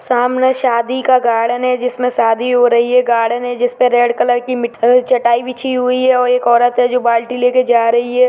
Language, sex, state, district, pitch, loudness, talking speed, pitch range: Hindi, female, Chhattisgarh, Bastar, 245 Hz, -13 LUFS, 240 wpm, 235-250 Hz